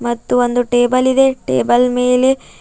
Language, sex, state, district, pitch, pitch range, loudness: Kannada, female, Karnataka, Bidar, 250 Hz, 245-260 Hz, -14 LUFS